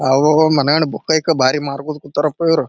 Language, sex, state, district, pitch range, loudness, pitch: Kannada, male, Karnataka, Bijapur, 145-160 Hz, -16 LUFS, 150 Hz